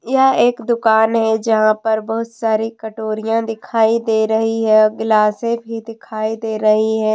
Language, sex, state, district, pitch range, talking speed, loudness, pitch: Hindi, female, Jharkhand, Deoghar, 220-230 Hz, 170 wpm, -16 LUFS, 225 Hz